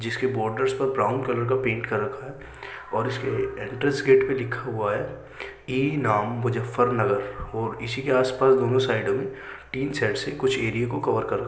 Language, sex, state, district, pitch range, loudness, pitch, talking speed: Hindi, male, Uttar Pradesh, Muzaffarnagar, 120-130 Hz, -25 LUFS, 130 Hz, 200 wpm